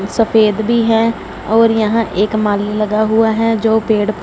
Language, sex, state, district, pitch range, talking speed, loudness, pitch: Hindi, female, Punjab, Fazilka, 210-225 Hz, 170 wpm, -14 LUFS, 220 Hz